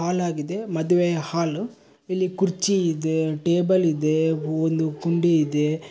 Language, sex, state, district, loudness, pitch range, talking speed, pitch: Kannada, male, Karnataka, Bellary, -23 LUFS, 155-180 Hz, 110 wpm, 165 Hz